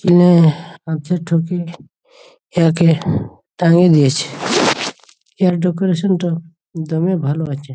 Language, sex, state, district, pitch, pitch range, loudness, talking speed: Bengali, male, West Bengal, Jhargram, 170 Hz, 160-180 Hz, -16 LUFS, 95 wpm